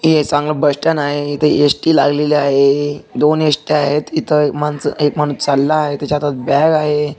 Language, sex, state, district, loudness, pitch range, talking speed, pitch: Marathi, male, Maharashtra, Dhule, -15 LUFS, 145-150 Hz, 190 wpm, 150 Hz